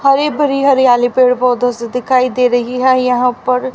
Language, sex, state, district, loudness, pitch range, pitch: Hindi, female, Haryana, Rohtak, -13 LUFS, 245-260 Hz, 250 Hz